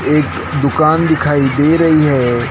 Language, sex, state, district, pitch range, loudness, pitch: Hindi, male, Maharashtra, Gondia, 135-155 Hz, -12 LUFS, 145 Hz